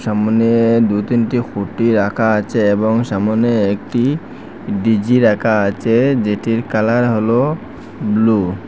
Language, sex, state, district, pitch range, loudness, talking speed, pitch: Bengali, male, Assam, Hailakandi, 105-120 Hz, -15 LUFS, 115 wpm, 115 Hz